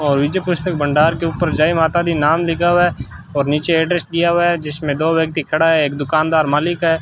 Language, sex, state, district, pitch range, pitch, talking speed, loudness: Hindi, male, Rajasthan, Bikaner, 150-170 Hz, 160 Hz, 240 wpm, -16 LUFS